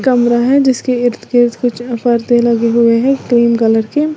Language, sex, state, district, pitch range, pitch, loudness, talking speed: Hindi, female, Uttar Pradesh, Lalitpur, 235-255 Hz, 240 Hz, -12 LUFS, 185 wpm